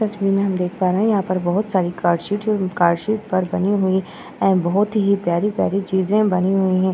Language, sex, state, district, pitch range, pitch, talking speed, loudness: Hindi, female, Uttar Pradesh, Hamirpur, 185-205 Hz, 190 Hz, 225 wpm, -19 LUFS